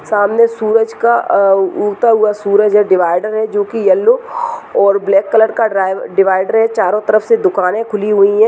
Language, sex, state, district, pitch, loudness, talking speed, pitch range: Hindi, female, Uttar Pradesh, Muzaffarnagar, 210 Hz, -12 LUFS, 185 wpm, 200-225 Hz